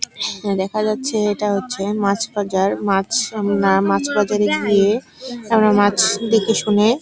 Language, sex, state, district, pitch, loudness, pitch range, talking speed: Bengali, female, West Bengal, Jalpaiguri, 210 Hz, -18 LUFS, 200-220 Hz, 135 wpm